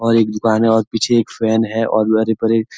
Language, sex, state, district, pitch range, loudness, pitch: Hindi, male, Uttarakhand, Uttarkashi, 110-115 Hz, -16 LUFS, 110 Hz